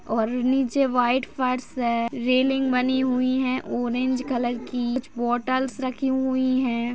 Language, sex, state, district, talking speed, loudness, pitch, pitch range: Hindi, female, Maharashtra, Sindhudurg, 145 wpm, -24 LUFS, 255 Hz, 245-260 Hz